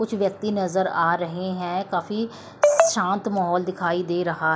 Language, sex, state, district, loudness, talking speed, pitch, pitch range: Hindi, female, Chandigarh, Chandigarh, -23 LUFS, 160 wpm, 185 Hz, 175-210 Hz